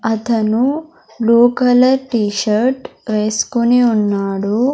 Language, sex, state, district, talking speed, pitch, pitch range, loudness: Telugu, female, Andhra Pradesh, Sri Satya Sai, 75 wpm, 230 Hz, 215-250 Hz, -15 LUFS